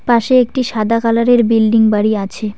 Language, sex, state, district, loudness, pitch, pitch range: Bengali, female, West Bengal, Cooch Behar, -13 LUFS, 230 Hz, 215-240 Hz